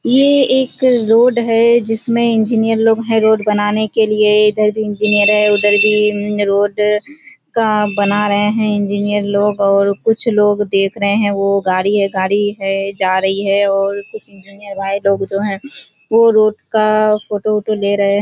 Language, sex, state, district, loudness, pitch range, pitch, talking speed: Hindi, female, Bihar, Kishanganj, -14 LUFS, 200-220 Hz, 210 Hz, 180 wpm